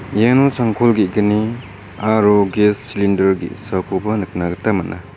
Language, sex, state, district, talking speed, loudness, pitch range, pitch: Garo, male, Meghalaya, West Garo Hills, 115 wpm, -16 LUFS, 95-110 Hz, 105 Hz